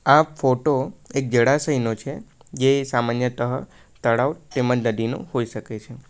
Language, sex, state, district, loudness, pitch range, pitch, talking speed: Gujarati, male, Gujarat, Valsad, -22 LUFS, 120-140 Hz, 130 Hz, 135 wpm